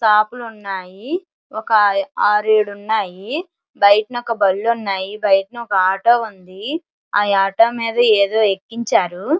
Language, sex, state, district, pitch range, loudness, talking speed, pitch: Telugu, female, Andhra Pradesh, Srikakulam, 195-235 Hz, -17 LUFS, 130 wpm, 215 Hz